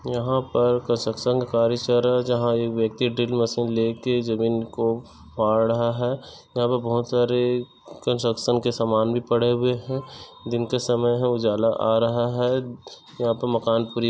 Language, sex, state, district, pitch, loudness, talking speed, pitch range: Hindi, male, Chhattisgarh, Bastar, 120 Hz, -23 LUFS, 170 wpm, 115-125 Hz